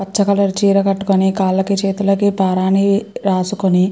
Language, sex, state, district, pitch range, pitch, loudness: Telugu, female, Andhra Pradesh, Chittoor, 190-200 Hz, 195 Hz, -15 LUFS